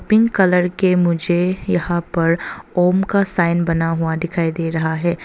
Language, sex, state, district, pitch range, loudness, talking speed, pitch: Hindi, female, Arunachal Pradesh, Longding, 165-185 Hz, -18 LUFS, 170 wpm, 175 Hz